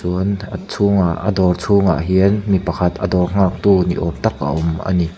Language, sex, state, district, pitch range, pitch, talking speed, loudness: Mizo, male, Mizoram, Aizawl, 90-100 Hz, 95 Hz, 185 wpm, -17 LUFS